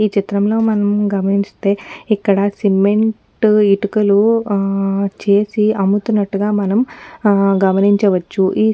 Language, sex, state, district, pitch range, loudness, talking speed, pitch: Telugu, female, Telangana, Nalgonda, 200-215 Hz, -15 LUFS, 90 wpm, 205 Hz